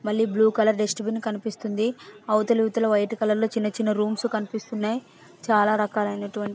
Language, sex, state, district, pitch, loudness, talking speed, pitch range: Telugu, female, Andhra Pradesh, Anantapur, 215 Hz, -24 LUFS, 165 wpm, 210-225 Hz